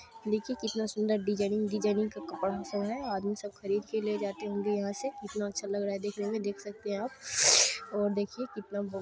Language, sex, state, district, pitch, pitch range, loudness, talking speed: Maithili, female, Bihar, Supaul, 205 Hz, 200-215 Hz, -31 LUFS, 220 wpm